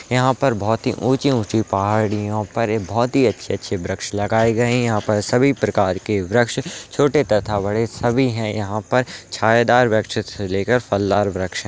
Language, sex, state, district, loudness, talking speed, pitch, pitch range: Hindi, male, Uttarakhand, Tehri Garhwal, -19 LUFS, 180 wpm, 110 Hz, 105-125 Hz